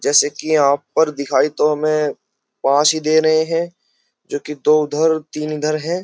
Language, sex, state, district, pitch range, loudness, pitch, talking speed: Hindi, male, Uttar Pradesh, Jyotiba Phule Nagar, 145-160 Hz, -17 LUFS, 155 Hz, 190 wpm